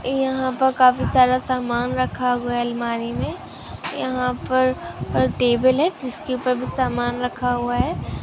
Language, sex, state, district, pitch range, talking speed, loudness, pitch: Hindi, female, Maharashtra, Chandrapur, 240-255 Hz, 155 wpm, -21 LUFS, 250 Hz